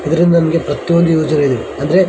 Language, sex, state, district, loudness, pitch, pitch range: Kannada, male, Karnataka, Dharwad, -14 LUFS, 165 Hz, 145-170 Hz